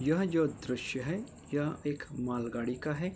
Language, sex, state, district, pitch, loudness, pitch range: Hindi, male, Bihar, Kishanganj, 145 Hz, -34 LUFS, 125-160 Hz